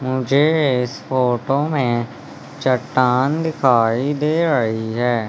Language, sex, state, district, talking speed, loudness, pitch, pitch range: Hindi, male, Madhya Pradesh, Umaria, 100 wpm, -18 LUFS, 130 Hz, 120-145 Hz